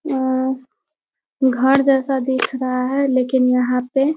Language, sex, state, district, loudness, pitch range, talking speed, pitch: Hindi, female, Bihar, Muzaffarpur, -18 LUFS, 255-270 Hz, 145 wpm, 260 Hz